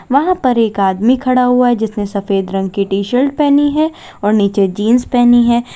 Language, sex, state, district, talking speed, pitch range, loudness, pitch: Hindi, female, Uttar Pradesh, Lalitpur, 210 wpm, 200-255 Hz, -13 LUFS, 235 Hz